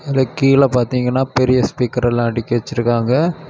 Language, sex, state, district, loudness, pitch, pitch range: Tamil, male, Tamil Nadu, Kanyakumari, -16 LUFS, 125 Hz, 120-135 Hz